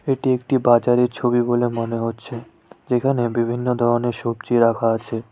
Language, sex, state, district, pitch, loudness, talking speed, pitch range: Bengali, male, West Bengal, Cooch Behar, 120 Hz, -20 LUFS, 145 wpm, 115-125 Hz